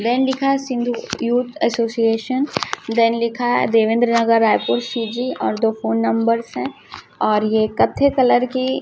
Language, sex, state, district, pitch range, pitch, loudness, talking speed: Hindi, female, Chhattisgarh, Raipur, 225-250 Hz, 235 Hz, -18 LUFS, 150 wpm